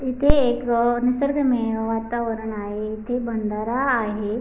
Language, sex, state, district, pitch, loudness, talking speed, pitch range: Marathi, female, Maharashtra, Pune, 235 Hz, -23 LUFS, 135 wpm, 220-250 Hz